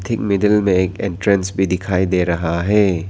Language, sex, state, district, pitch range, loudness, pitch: Hindi, male, Arunachal Pradesh, Papum Pare, 90-100 Hz, -17 LUFS, 95 Hz